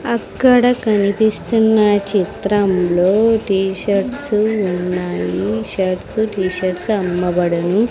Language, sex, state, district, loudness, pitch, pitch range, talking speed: Telugu, female, Andhra Pradesh, Sri Satya Sai, -16 LUFS, 200 Hz, 180-220 Hz, 60 wpm